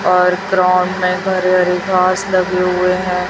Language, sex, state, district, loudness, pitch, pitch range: Hindi, female, Chhattisgarh, Raipur, -14 LUFS, 185 Hz, 180-185 Hz